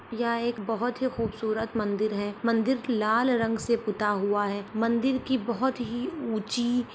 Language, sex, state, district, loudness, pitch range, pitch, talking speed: Hindi, female, Jharkhand, Sahebganj, -28 LUFS, 215-245 Hz, 230 Hz, 165 wpm